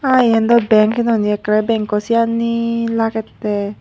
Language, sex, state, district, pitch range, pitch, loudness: Chakma, female, Tripura, Unakoti, 215-230 Hz, 225 Hz, -16 LUFS